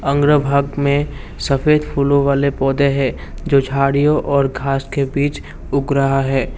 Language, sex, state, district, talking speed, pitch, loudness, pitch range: Hindi, male, Assam, Kamrup Metropolitan, 155 wpm, 140 Hz, -17 LUFS, 135-140 Hz